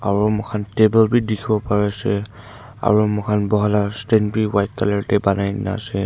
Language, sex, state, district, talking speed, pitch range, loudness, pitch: Nagamese, male, Nagaland, Dimapur, 180 wpm, 100-110 Hz, -19 LUFS, 105 Hz